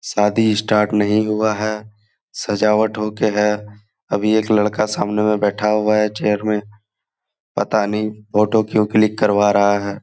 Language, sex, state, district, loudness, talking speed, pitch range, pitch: Hindi, male, Jharkhand, Jamtara, -17 LUFS, 160 wpm, 105-110 Hz, 105 Hz